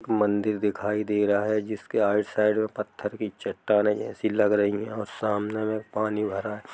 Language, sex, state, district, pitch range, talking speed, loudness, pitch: Hindi, male, Jharkhand, Jamtara, 105-110 Hz, 180 wpm, -26 LUFS, 105 Hz